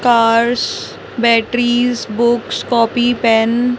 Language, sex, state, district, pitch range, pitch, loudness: Hindi, female, Chhattisgarh, Raipur, 230-245 Hz, 235 Hz, -14 LUFS